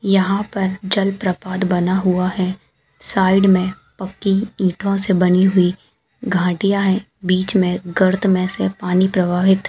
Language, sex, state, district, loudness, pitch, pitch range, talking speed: Hindi, female, Chhattisgarh, Jashpur, -18 LUFS, 190 Hz, 185-195 Hz, 140 wpm